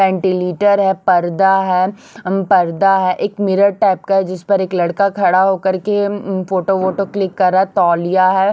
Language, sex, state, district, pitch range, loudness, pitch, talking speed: Hindi, female, Chhattisgarh, Raipur, 185-200 Hz, -15 LUFS, 190 Hz, 175 wpm